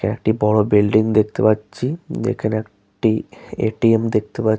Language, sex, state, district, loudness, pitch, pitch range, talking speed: Bengali, male, West Bengal, Paschim Medinipur, -19 LUFS, 110 Hz, 105-110 Hz, 130 wpm